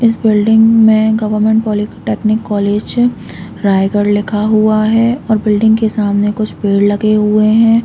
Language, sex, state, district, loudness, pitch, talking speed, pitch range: Hindi, female, Chhattisgarh, Raigarh, -12 LUFS, 215 Hz, 155 wpm, 210-220 Hz